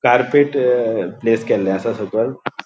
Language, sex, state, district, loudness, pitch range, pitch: Konkani, male, Goa, North and South Goa, -17 LUFS, 110-125 Hz, 115 Hz